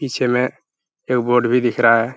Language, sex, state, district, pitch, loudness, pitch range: Hindi, male, Uttar Pradesh, Hamirpur, 125 Hz, -17 LUFS, 120-125 Hz